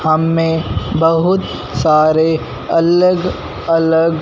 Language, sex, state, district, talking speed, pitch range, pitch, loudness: Hindi, male, Punjab, Fazilka, 70 wpm, 155-165 Hz, 160 Hz, -14 LUFS